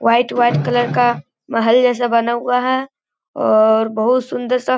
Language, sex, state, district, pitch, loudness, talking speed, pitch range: Hindi, male, Bihar, Gaya, 240 Hz, -16 LUFS, 175 wpm, 220-250 Hz